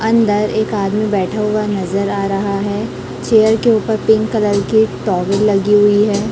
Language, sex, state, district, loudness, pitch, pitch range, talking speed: Hindi, female, Chhattisgarh, Raipur, -15 LUFS, 210 Hz, 200-215 Hz, 190 wpm